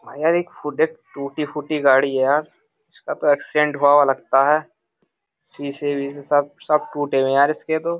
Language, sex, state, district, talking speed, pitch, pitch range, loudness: Hindi, male, Uttar Pradesh, Jyotiba Phule Nagar, 185 wpm, 145 Hz, 140-155 Hz, -20 LUFS